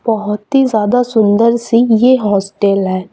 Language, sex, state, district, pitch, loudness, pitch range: Hindi, female, Chhattisgarh, Raipur, 220 Hz, -12 LUFS, 205-240 Hz